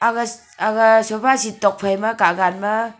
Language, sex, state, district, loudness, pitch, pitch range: Wancho, female, Arunachal Pradesh, Longding, -18 LUFS, 220 Hz, 200-230 Hz